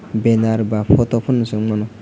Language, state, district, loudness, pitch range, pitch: Kokborok, Tripura, West Tripura, -17 LUFS, 110-115 Hz, 110 Hz